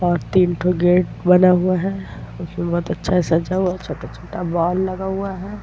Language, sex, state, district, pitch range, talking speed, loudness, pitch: Hindi, female, Bihar, Vaishali, 175-185 Hz, 180 wpm, -19 LUFS, 180 Hz